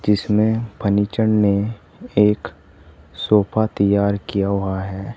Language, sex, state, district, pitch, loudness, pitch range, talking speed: Hindi, male, Uttar Pradesh, Saharanpur, 100 Hz, -19 LUFS, 95-105 Hz, 105 wpm